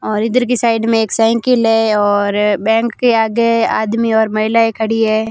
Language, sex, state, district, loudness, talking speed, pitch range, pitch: Hindi, female, Rajasthan, Barmer, -14 LUFS, 190 wpm, 220-230 Hz, 225 Hz